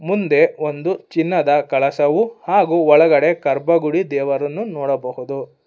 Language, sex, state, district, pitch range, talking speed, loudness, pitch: Kannada, female, Karnataka, Bangalore, 140-170 Hz, 95 wpm, -17 LUFS, 150 Hz